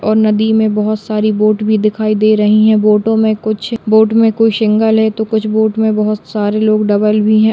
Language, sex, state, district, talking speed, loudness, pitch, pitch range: Hindi, female, Bihar, Lakhisarai, 230 wpm, -12 LUFS, 215 Hz, 215-220 Hz